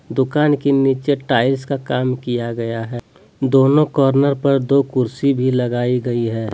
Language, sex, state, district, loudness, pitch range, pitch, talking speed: Hindi, male, Jharkhand, Deoghar, -17 LUFS, 120-140 Hz, 130 Hz, 165 wpm